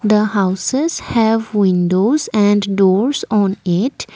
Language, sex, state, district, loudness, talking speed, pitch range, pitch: English, female, Assam, Kamrup Metropolitan, -15 LUFS, 115 wpm, 195-225 Hz, 210 Hz